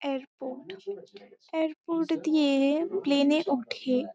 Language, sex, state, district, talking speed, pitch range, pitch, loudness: Bengali, female, West Bengal, Kolkata, 100 wpm, 275-335 Hz, 310 Hz, -27 LUFS